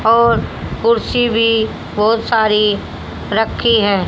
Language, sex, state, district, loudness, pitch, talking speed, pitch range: Hindi, female, Haryana, Jhajjar, -15 LUFS, 225 Hz, 105 wpm, 210-230 Hz